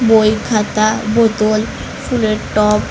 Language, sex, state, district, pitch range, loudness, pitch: Bengali, female, West Bengal, North 24 Parganas, 215-220 Hz, -15 LUFS, 215 Hz